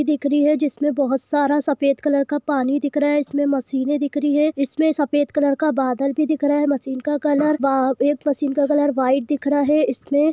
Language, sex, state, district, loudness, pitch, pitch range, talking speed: Hindi, female, Jharkhand, Sahebganj, -19 LUFS, 290 Hz, 280-295 Hz, 210 wpm